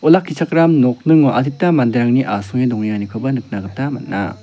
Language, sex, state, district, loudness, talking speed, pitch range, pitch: Garo, male, Meghalaya, South Garo Hills, -16 LUFS, 120 wpm, 110-155 Hz, 125 Hz